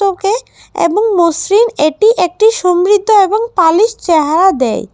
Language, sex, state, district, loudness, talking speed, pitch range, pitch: Bengali, female, Tripura, West Tripura, -11 LUFS, 110 wpm, 335-435 Hz, 390 Hz